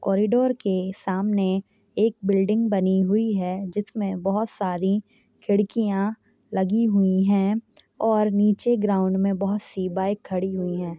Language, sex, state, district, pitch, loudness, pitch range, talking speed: Hindi, female, Chhattisgarh, Jashpur, 200 Hz, -23 LUFS, 190-215 Hz, 135 wpm